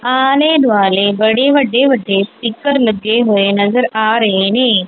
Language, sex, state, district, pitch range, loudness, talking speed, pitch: Punjabi, female, Punjab, Kapurthala, 200-255 Hz, -12 LUFS, 145 wpm, 225 Hz